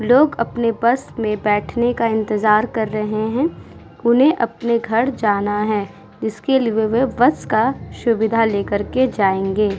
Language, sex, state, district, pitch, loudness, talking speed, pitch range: Hindi, female, Uttar Pradesh, Muzaffarnagar, 225 Hz, -18 LUFS, 145 wpm, 210-240 Hz